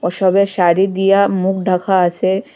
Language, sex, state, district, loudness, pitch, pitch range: Bengali, female, Assam, Hailakandi, -14 LUFS, 190 Hz, 180-195 Hz